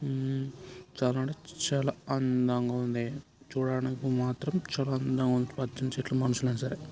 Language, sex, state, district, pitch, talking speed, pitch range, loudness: Telugu, male, Andhra Pradesh, Chittoor, 130 Hz, 140 wpm, 125-135 Hz, -31 LUFS